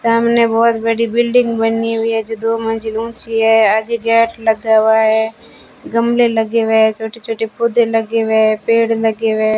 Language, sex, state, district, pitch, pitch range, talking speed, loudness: Hindi, female, Rajasthan, Bikaner, 225 Hz, 220-230 Hz, 190 wpm, -14 LUFS